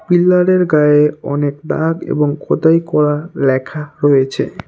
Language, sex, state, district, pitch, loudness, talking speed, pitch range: Bengali, male, West Bengal, Alipurduar, 150 Hz, -14 LUFS, 115 wpm, 145-165 Hz